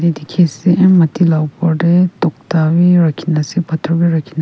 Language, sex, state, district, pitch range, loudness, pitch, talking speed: Nagamese, female, Nagaland, Kohima, 160-175 Hz, -13 LUFS, 170 Hz, 175 wpm